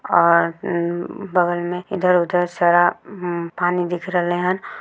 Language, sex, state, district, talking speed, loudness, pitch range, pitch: Maithili, female, Bihar, Samastipur, 135 wpm, -20 LUFS, 175-180 Hz, 175 Hz